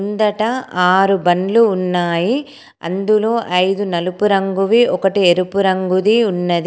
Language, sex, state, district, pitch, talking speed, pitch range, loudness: Telugu, female, Telangana, Komaram Bheem, 195 Hz, 110 wpm, 180-215 Hz, -15 LUFS